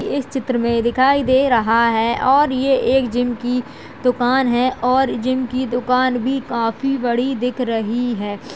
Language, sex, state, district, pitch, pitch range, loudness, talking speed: Hindi, female, Uttar Pradesh, Jalaun, 250 Hz, 235-260 Hz, -18 LUFS, 170 wpm